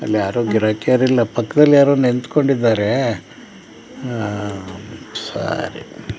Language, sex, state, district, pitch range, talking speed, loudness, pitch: Kannada, male, Karnataka, Dakshina Kannada, 105-130 Hz, 115 wpm, -17 LUFS, 120 Hz